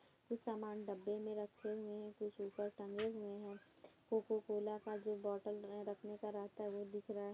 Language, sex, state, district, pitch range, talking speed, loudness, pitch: Hindi, female, Bihar, Kishanganj, 205-215 Hz, 215 wpm, -46 LUFS, 210 Hz